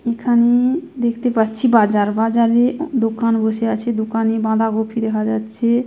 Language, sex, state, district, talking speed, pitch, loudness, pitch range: Bengali, female, West Bengal, Dakshin Dinajpur, 125 wpm, 230 Hz, -17 LUFS, 220-240 Hz